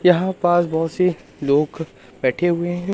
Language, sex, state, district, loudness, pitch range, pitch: Hindi, male, Madhya Pradesh, Katni, -20 LUFS, 155-180 Hz, 175 Hz